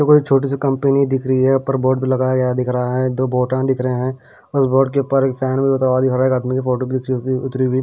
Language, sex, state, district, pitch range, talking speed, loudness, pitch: Hindi, male, Punjab, Pathankot, 130-135 Hz, 315 wpm, -17 LUFS, 130 Hz